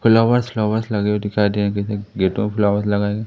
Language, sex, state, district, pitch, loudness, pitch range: Hindi, male, Madhya Pradesh, Katni, 105 Hz, -19 LUFS, 100-110 Hz